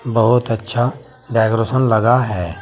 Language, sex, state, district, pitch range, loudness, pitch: Hindi, male, Uttar Pradesh, Saharanpur, 110-125 Hz, -16 LUFS, 115 Hz